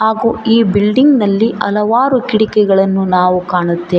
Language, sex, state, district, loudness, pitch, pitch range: Kannada, female, Karnataka, Koppal, -12 LUFS, 210 Hz, 195-230 Hz